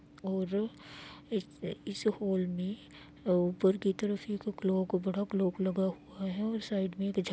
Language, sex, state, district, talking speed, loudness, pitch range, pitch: Hindi, female, Bihar, Darbhanga, 190 wpm, -33 LUFS, 185-205 Hz, 190 Hz